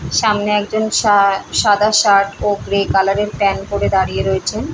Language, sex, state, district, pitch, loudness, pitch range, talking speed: Bengali, female, West Bengal, Paschim Medinipur, 205 Hz, -15 LUFS, 200-210 Hz, 165 wpm